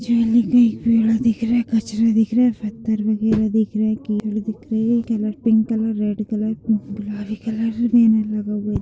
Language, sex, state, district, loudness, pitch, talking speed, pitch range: Hindi, female, Jharkhand, Jamtara, -19 LUFS, 220 Hz, 150 wpm, 215-230 Hz